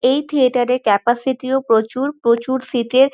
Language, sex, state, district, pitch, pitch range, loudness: Bengali, female, West Bengal, North 24 Parganas, 255 Hz, 240-265 Hz, -17 LUFS